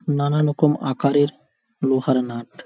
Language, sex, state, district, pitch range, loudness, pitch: Bengali, male, West Bengal, Paschim Medinipur, 130-150 Hz, -21 LUFS, 145 Hz